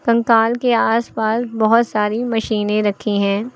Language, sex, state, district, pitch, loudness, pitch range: Hindi, female, Uttar Pradesh, Lucknow, 225 Hz, -17 LUFS, 210-235 Hz